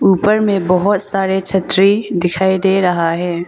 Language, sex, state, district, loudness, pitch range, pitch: Hindi, female, Arunachal Pradesh, Longding, -14 LUFS, 180-195 Hz, 190 Hz